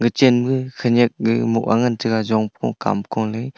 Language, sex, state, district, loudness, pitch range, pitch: Wancho, male, Arunachal Pradesh, Longding, -19 LUFS, 110-120 Hz, 115 Hz